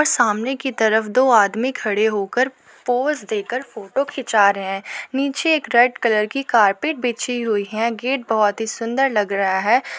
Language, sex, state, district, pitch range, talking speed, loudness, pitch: Hindi, female, Uttar Pradesh, Muzaffarnagar, 210-265 Hz, 175 wpm, -19 LUFS, 235 Hz